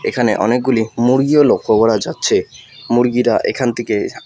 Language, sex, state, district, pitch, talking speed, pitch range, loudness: Bengali, male, West Bengal, Alipurduar, 125 Hz, 125 wpm, 120-135 Hz, -15 LUFS